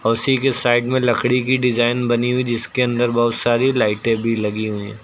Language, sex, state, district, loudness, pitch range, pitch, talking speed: Hindi, male, Uttar Pradesh, Lucknow, -18 LUFS, 115-125 Hz, 120 Hz, 215 wpm